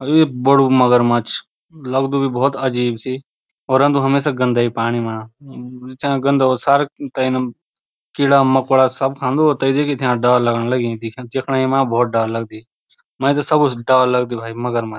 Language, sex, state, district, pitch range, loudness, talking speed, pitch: Garhwali, male, Uttarakhand, Uttarkashi, 120-140 Hz, -17 LUFS, 175 wpm, 130 Hz